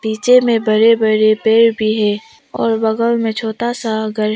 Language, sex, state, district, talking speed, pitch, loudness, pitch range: Hindi, female, Arunachal Pradesh, Papum Pare, 195 wpm, 220 Hz, -14 LUFS, 215-230 Hz